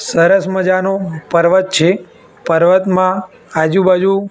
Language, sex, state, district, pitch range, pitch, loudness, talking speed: Gujarati, male, Gujarat, Gandhinagar, 170-190 Hz, 185 Hz, -13 LUFS, 100 wpm